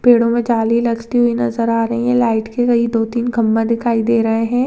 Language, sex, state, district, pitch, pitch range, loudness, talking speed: Hindi, female, Maharashtra, Chandrapur, 235 Hz, 225-240 Hz, -16 LUFS, 245 wpm